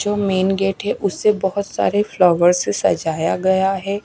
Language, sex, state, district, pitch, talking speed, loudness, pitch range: Hindi, female, Odisha, Nuapada, 195 Hz, 175 wpm, -18 LUFS, 180-200 Hz